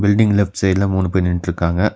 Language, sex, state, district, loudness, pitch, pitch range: Tamil, male, Tamil Nadu, Nilgiris, -17 LUFS, 95 Hz, 90-100 Hz